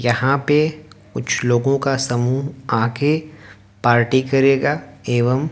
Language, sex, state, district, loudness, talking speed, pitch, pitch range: Hindi, male, Haryana, Jhajjar, -18 LUFS, 110 wpm, 135 Hz, 120-145 Hz